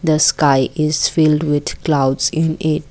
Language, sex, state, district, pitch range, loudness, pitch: English, female, Assam, Kamrup Metropolitan, 145-155 Hz, -16 LUFS, 150 Hz